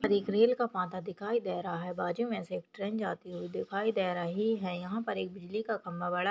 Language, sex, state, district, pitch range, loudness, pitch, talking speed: Hindi, female, Maharashtra, Aurangabad, 180-220 Hz, -33 LUFS, 200 Hz, 235 wpm